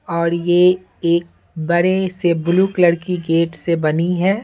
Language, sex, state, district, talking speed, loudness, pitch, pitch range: Hindi, male, Bihar, Patna, 160 wpm, -17 LUFS, 175 Hz, 170-180 Hz